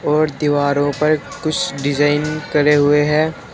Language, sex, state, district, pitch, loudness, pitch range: Hindi, male, Uttar Pradesh, Saharanpur, 150 Hz, -16 LUFS, 145-155 Hz